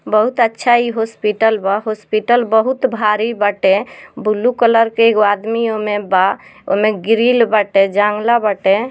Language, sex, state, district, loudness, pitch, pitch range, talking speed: Bhojpuri, female, Bihar, Muzaffarpur, -15 LUFS, 220 Hz, 210-235 Hz, 150 wpm